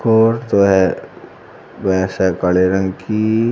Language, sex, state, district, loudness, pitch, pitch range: Hindi, male, Uttar Pradesh, Shamli, -16 LUFS, 95 Hz, 95-110 Hz